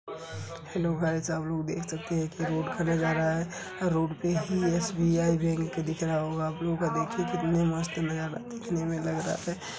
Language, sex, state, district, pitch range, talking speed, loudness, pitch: Hindi, male, Uttar Pradesh, Jalaun, 160-170 Hz, 190 wpm, -30 LUFS, 165 Hz